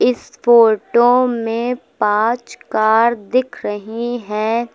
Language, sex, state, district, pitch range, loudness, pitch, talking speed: Hindi, female, Uttar Pradesh, Lucknow, 220-245 Hz, -16 LUFS, 230 Hz, 100 wpm